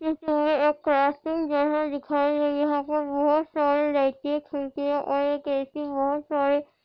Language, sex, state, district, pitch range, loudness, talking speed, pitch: Hindi, female, Andhra Pradesh, Anantapur, 285-300 Hz, -25 LUFS, 130 wpm, 290 Hz